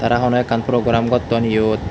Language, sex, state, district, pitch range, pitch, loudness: Chakma, male, Tripura, West Tripura, 115-125 Hz, 115 Hz, -17 LUFS